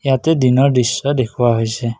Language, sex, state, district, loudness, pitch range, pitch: Assamese, male, Assam, Kamrup Metropolitan, -15 LUFS, 115-140 Hz, 125 Hz